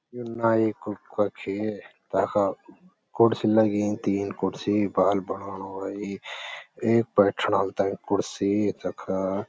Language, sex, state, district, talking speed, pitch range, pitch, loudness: Garhwali, male, Uttarakhand, Uttarkashi, 105 wpm, 100-110 Hz, 105 Hz, -26 LUFS